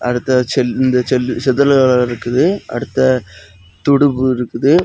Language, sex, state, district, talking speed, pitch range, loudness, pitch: Tamil, male, Tamil Nadu, Kanyakumari, 110 wpm, 120-130 Hz, -15 LUFS, 125 Hz